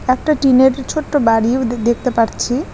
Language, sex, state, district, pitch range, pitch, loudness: Bengali, female, West Bengal, Alipurduar, 235-270 Hz, 255 Hz, -15 LUFS